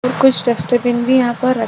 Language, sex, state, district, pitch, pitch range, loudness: Hindi, female, Maharashtra, Chandrapur, 250 Hz, 240-255 Hz, -14 LUFS